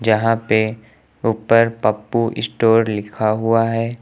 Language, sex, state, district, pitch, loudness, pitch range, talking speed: Hindi, male, Uttar Pradesh, Lucknow, 115 Hz, -18 LUFS, 110-115 Hz, 120 wpm